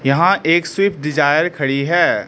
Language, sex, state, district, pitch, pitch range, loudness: Hindi, male, Arunachal Pradesh, Lower Dibang Valley, 155 Hz, 140-175 Hz, -16 LUFS